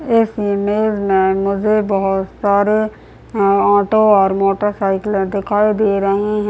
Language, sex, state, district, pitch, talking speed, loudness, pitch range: Hindi, male, Bihar, Muzaffarpur, 205 Hz, 130 wpm, -15 LUFS, 195-210 Hz